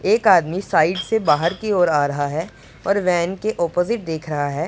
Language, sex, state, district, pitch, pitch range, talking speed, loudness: Hindi, female, Punjab, Pathankot, 170 Hz, 155-200 Hz, 215 wpm, -19 LUFS